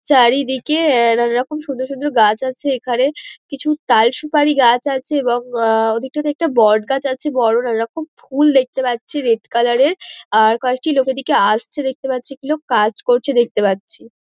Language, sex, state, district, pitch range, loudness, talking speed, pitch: Bengali, female, West Bengal, Dakshin Dinajpur, 235-290 Hz, -16 LUFS, 160 wpm, 260 Hz